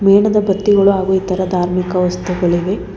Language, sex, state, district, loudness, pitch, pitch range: Kannada, female, Karnataka, Bangalore, -15 LUFS, 190 Hz, 180-195 Hz